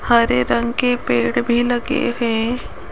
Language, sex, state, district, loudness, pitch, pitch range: Hindi, female, Rajasthan, Jaipur, -18 LUFS, 235 Hz, 225-245 Hz